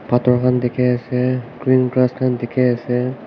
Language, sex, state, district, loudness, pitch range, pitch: Nagamese, male, Nagaland, Kohima, -18 LUFS, 125-130 Hz, 125 Hz